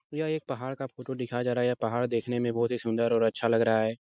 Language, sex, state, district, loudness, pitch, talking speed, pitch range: Hindi, male, Bihar, Araria, -29 LUFS, 120 Hz, 310 wpm, 115-125 Hz